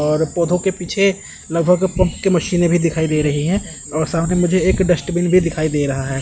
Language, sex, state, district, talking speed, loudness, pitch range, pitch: Hindi, male, Chandigarh, Chandigarh, 220 wpm, -17 LUFS, 155-185 Hz, 175 Hz